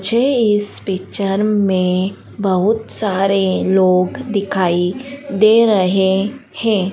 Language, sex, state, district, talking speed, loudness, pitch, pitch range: Hindi, female, Madhya Pradesh, Dhar, 95 wpm, -16 LUFS, 195 Hz, 190-215 Hz